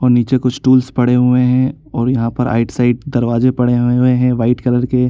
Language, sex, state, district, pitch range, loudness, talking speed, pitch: Hindi, male, Chhattisgarh, Rajnandgaon, 120-125 Hz, -14 LUFS, 245 wpm, 125 Hz